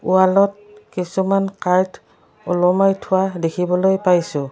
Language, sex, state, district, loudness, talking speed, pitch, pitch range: Assamese, female, Assam, Kamrup Metropolitan, -18 LUFS, 95 wpm, 185 Hz, 180-195 Hz